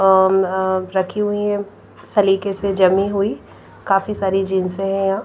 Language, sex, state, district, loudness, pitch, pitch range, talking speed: Hindi, female, Punjab, Pathankot, -18 LUFS, 195 Hz, 190-200 Hz, 160 wpm